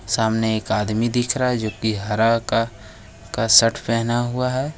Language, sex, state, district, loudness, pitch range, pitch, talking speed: Hindi, male, Jharkhand, Ranchi, -20 LUFS, 110-120 Hz, 115 Hz, 190 wpm